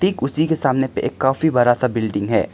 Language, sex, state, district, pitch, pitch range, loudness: Hindi, male, Arunachal Pradesh, Lower Dibang Valley, 135 Hz, 120-155 Hz, -18 LUFS